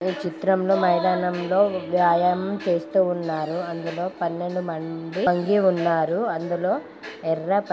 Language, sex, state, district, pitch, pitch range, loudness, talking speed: Telugu, female, Andhra Pradesh, Srikakulam, 180 Hz, 170-185 Hz, -23 LUFS, 110 wpm